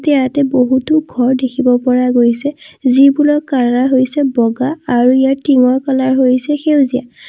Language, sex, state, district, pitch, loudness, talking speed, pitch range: Assamese, female, Assam, Kamrup Metropolitan, 260 Hz, -13 LUFS, 130 wpm, 255-285 Hz